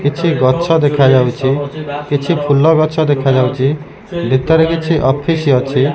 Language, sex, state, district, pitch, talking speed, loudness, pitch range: Odia, male, Odisha, Malkangiri, 145 Hz, 110 wpm, -13 LUFS, 135-160 Hz